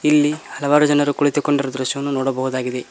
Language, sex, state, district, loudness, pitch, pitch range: Kannada, male, Karnataka, Koppal, -19 LUFS, 145 Hz, 130-145 Hz